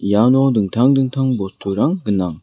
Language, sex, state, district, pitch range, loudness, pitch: Garo, male, Meghalaya, West Garo Hills, 100-135 Hz, -17 LUFS, 120 Hz